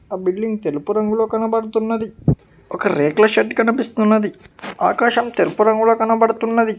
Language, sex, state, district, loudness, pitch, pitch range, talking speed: Telugu, male, Telangana, Hyderabad, -17 LUFS, 225 Hz, 215-230 Hz, 115 wpm